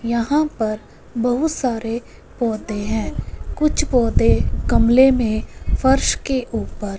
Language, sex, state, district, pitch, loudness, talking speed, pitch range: Hindi, female, Punjab, Fazilka, 235 Hz, -19 LUFS, 110 wpm, 220-265 Hz